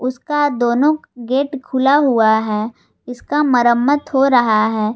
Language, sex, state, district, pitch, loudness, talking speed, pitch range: Hindi, female, Jharkhand, Garhwa, 250 Hz, -16 LUFS, 135 wpm, 235-280 Hz